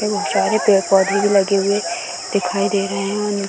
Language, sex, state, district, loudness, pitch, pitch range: Hindi, female, Bihar, Gaya, -17 LUFS, 200 Hz, 195-210 Hz